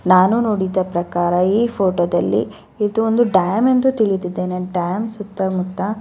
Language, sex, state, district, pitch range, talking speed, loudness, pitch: Kannada, female, Karnataka, Bellary, 180-220 Hz, 130 wpm, -18 LUFS, 190 Hz